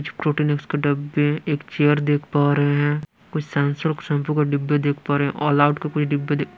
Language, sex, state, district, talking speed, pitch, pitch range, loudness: Hindi, male, Punjab, Pathankot, 245 wpm, 145 Hz, 145-150 Hz, -21 LUFS